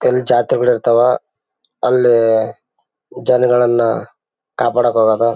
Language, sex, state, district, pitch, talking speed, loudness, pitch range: Kannada, male, Karnataka, Bellary, 120 Hz, 65 wpm, -14 LUFS, 115-125 Hz